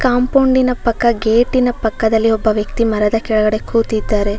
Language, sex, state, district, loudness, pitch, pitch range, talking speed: Kannada, female, Karnataka, Bangalore, -15 LUFS, 225 Hz, 215-245 Hz, 150 wpm